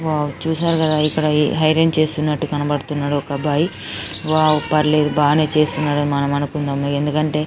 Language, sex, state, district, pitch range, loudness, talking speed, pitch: Telugu, female, Telangana, Karimnagar, 145-155 Hz, -18 LUFS, 130 wpm, 150 Hz